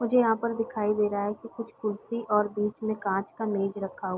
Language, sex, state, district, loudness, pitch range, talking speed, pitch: Hindi, female, Uttar Pradesh, Varanasi, -29 LUFS, 205-225 Hz, 260 wpm, 210 Hz